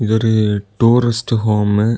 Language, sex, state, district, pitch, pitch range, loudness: Tamil, male, Tamil Nadu, Kanyakumari, 110 Hz, 105-115 Hz, -15 LUFS